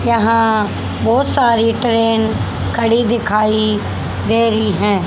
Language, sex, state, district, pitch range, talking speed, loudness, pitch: Hindi, female, Haryana, Charkhi Dadri, 215-230 Hz, 105 wpm, -15 LUFS, 225 Hz